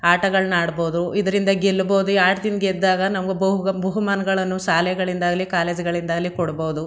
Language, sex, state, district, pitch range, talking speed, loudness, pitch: Kannada, female, Karnataka, Mysore, 175-195 Hz, 130 wpm, -20 LUFS, 185 Hz